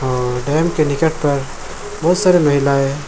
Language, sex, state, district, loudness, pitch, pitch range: Hindi, male, Jharkhand, Jamtara, -16 LUFS, 145 Hz, 140-160 Hz